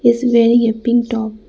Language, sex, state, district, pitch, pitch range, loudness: English, female, Arunachal Pradesh, Lower Dibang Valley, 235 Hz, 225-240 Hz, -14 LUFS